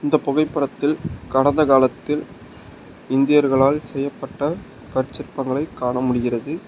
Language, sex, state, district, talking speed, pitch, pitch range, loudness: Tamil, male, Tamil Nadu, Nilgiris, 80 wpm, 140 Hz, 130-150 Hz, -20 LUFS